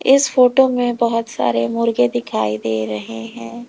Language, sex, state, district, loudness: Hindi, female, Uttar Pradesh, Lalitpur, -17 LUFS